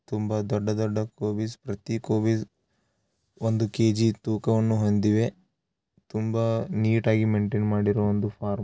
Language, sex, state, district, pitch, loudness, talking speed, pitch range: Kannada, male, Karnataka, Raichur, 110 Hz, -26 LUFS, 110 wpm, 105-110 Hz